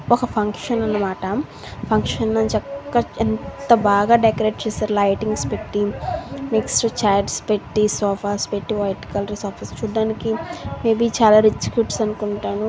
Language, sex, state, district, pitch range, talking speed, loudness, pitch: Telugu, female, Andhra Pradesh, Visakhapatnam, 205-225 Hz, 70 wpm, -20 LUFS, 215 Hz